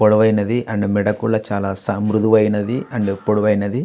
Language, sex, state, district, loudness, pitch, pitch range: Telugu, male, Andhra Pradesh, Visakhapatnam, -18 LUFS, 105 Hz, 100-110 Hz